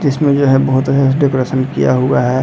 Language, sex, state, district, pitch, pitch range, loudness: Hindi, male, Bihar, Madhepura, 135 Hz, 130-140 Hz, -13 LUFS